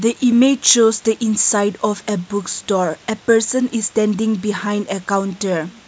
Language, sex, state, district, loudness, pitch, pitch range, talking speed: English, female, Nagaland, Kohima, -17 LUFS, 210 Hz, 205-225 Hz, 135 wpm